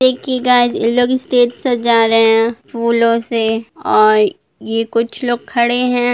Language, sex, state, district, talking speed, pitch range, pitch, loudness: Hindi, female, Bihar, Gopalganj, 155 wpm, 225-245 Hz, 235 Hz, -14 LUFS